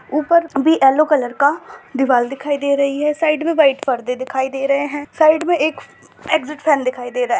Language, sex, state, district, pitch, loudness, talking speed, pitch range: Hindi, female, Uttar Pradesh, Ghazipur, 285 Hz, -17 LUFS, 220 wpm, 270-310 Hz